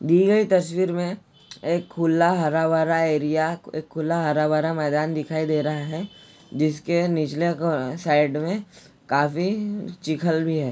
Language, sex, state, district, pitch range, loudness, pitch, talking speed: Hindi, male, Jharkhand, Jamtara, 155-175 Hz, -23 LUFS, 160 Hz, 155 wpm